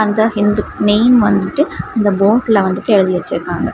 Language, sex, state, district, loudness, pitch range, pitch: Tamil, female, Tamil Nadu, Kanyakumari, -14 LUFS, 200-220 Hz, 210 Hz